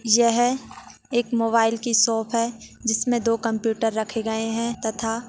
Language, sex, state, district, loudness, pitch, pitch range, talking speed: Hindi, female, Chhattisgarh, Jashpur, -23 LUFS, 230 Hz, 225-235 Hz, 145 wpm